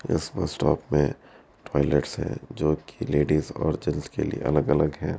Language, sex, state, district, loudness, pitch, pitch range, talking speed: Hindi, male, Uttar Pradesh, Muzaffarnagar, -26 LUFS, 75 Hz, 70-75 Hz, 175 wpm